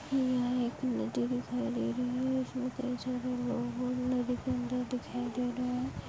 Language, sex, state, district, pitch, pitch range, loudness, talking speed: Hindi, female, Jharkhand, Sahebganj, 250 Hz, 245-250 Hz, -34 LUFS, 150 wpm